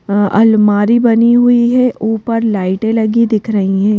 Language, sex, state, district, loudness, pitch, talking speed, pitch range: Hindi, female, Madhya Pradesh, Bhopal, -12 LUFS, 220 Hz, 165 wpm, 205-230 Hz